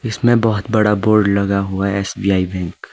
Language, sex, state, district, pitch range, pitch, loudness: Hindi, male, Himachal Pradesh, Shimla, 100-110 Hz, 100 Hz, -16 LUFS